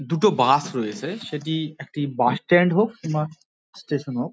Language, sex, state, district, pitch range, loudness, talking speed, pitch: Bengali, male, West Bengal, Dakshin Dinajpur, 145-175 Hz, -23 LUFS, 150 wpm, 155 Hz